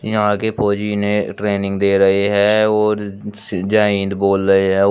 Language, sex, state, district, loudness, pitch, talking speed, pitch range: Hindi, male, Uttar Pradesh, Shamli, -16 LUFS, 100 Hz, 185 wpm, 100-105 Hz